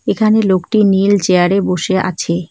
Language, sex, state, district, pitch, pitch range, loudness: Bengali, female, West Bengal, Cooch Behar, 190 Hz, 180-205 Hz, -13 LUFS